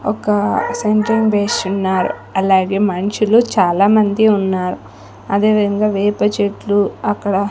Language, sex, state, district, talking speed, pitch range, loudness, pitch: Telugu, female, Andhra Pradesh, Sri Satya Sai, 90 wpm, 190-215 Hz, -15 LUFS, 205 Hz